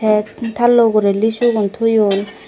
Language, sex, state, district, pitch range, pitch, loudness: Chakma, female, Tripura, Dhalai, 210-230 Hz, 220 Hz, -15 LUFS